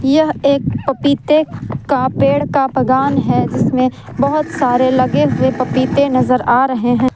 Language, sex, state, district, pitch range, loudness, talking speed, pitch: Hindi, female, Jharkhand, Palamu, 255-280 Hz, -14 LUFS, 150 wpm, 265 Hz